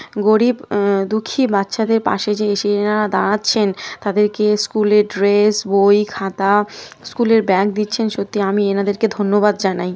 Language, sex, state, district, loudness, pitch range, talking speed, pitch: Bengali, female, West Bengal, North 24 Parganas, -16 LUFS, 200-215 Hz, 150 wpm, 205 Hz